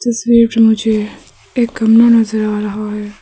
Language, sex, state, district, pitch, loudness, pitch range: Hindi, female, Arunachal Pradesh, Papum Pare, 220 Hz, -13 LUFS, 215-230 Hz